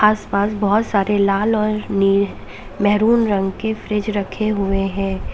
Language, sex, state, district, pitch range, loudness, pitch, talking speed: Hindi, female, Uttar Pradesh, Lalitpur, 195-215 Hz, -18 LUFS, 205 Hz, 145 wpm